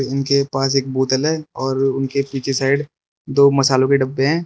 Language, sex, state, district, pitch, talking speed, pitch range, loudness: Hindi, male, Arunachal Pradesh, Lower Dibang Valley, 135 Hz, 190 wpm, 135-140 Hz, -18 LUFS